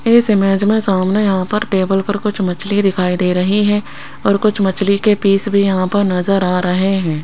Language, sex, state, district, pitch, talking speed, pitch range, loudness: Hindi, female, Rajasthan, Jaipur, 195 Hz, 215 wpm, 185-205 Hz, -15 LUFS